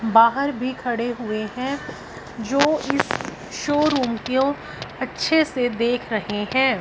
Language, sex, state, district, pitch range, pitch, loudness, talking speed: Hindi, female, Punjab, Fazilka, 230-280 Hz, 250 Hz, -22 LUFS, 125 wpm